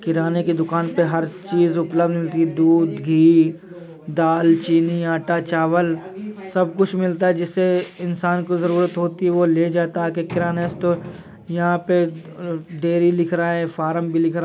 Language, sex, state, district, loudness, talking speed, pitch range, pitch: Hindi, male, Uttar Pradesh, Jyotiba Phule Nagar, -19 LUFS, 175 wpm, 165-175 Hz, 170 Hz